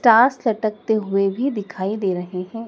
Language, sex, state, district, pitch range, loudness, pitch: Hindi, female, Madhya Pradesh, Dhar, 195-230 Hz, -21 LUFS, 215 Hz